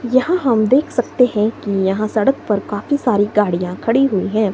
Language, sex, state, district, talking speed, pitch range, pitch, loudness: Hindi, female, Himachal Pradesh, Shimla, 200 wpm, 205-260 Hz, 220 Hz, -17 LUFS